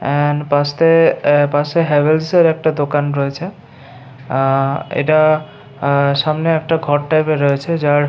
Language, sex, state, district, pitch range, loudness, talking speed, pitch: Bengali, male, West Bengal, Paschim Medinipur, 140-155 Hz, -15 LUFS, 150 wpm, 145 Hz